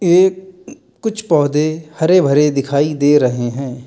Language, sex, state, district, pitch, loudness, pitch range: Hindi, male, Uttar Pradesh, Lalitpur, 150 Hz, -15 LUFS, 140-185 Hz